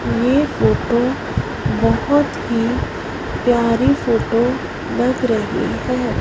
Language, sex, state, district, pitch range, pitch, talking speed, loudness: Hindi, female, Punjab, Fazilka, 230-255 Hz, 240 Hz, 85 wpm, -18 LUFS